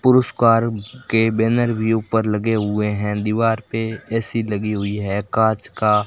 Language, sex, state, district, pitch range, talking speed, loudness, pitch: Hindi, male, Rajasthan, Bikaner, 105-115 Hz, 170 wpm, -19 LUFS, 110 Hz